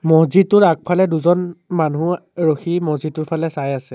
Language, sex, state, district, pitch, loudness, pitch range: Assamese, male, Assam, Sonitpur, 165 Hz, -17 LUFS, 155-175 Hz